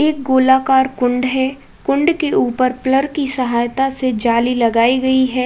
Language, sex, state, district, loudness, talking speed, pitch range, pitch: Hindi, female, Uttar Pradesh, Budaun, -16 LUFS, 155 wpm, 250-270 Hz, 260 Hz